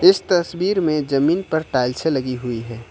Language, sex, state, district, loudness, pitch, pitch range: Hindi, male, Jharkhand, Ranchi, -20 LUFS, 150 Hz, 125-170 Hz